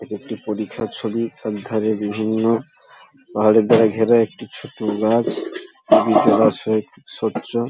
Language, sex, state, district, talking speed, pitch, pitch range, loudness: Bengali, male, West Bengal, Paschim Medinipur, 110 wpm, 110 Hz, 110-120 Hz, -19 LUFS